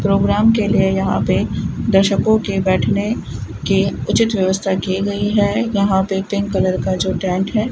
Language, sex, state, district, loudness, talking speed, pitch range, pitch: Hindi, female, Rajasthan, Bikaner, -17 LUFS, 170 wpm, 190-205 Hz, 195 Hz